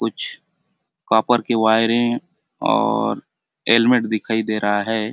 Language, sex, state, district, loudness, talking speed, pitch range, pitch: Hindi, male, Chhattisgarh, Bastar, -19 LUFS, 115 wpm, 110-120 Hz, 110 Hz